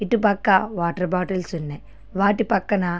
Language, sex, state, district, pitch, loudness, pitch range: Telugu, female, Andhra Pradesh, Srikakulam, 190 Hz, -22 LUFS, 175-205 Hz